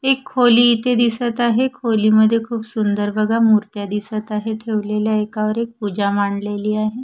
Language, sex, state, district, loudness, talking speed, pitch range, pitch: Marathi, female, Maharashtra, Washim, -18 LUFS, 155 wpm, 210-235 Hz, 220 Hz